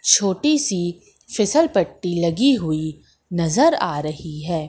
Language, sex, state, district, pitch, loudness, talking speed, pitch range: Hindi, female, Madhya Pradesh, Katni, 175 Hz, -20 LUFS, 130 wpm, 160-250 Hz